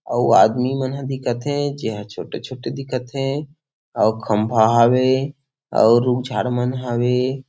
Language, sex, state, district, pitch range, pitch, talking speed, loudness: Chhattisgarhi, male, Chhattisgarh, Sarguja, 120-135 Hz, 125 Hz, 145 wpm, -19 LUFS